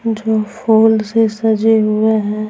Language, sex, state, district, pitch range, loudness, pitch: Hindi, female, Bihar, Patna, 215-225 Hz, -14 LUFS, 220 Hz